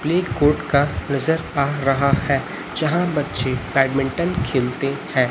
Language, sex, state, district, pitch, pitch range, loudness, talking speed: Hindi, male, Chhattisgarh, Raipur, 140 Hz, 135-150 Hz, -20 LUFS, 135 wpm